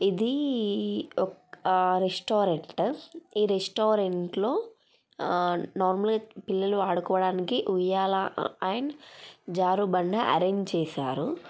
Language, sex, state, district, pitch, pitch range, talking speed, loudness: Telugu, female, Telangana, Karimnagar, 195 Hz, 185-215 Hz, 75 wpm, -28 LUFS